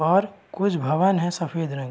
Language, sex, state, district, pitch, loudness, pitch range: Hindi, male, Chhattisgarh, Raigarh, 175 Hz, -23 LUFS, 160-195 Hz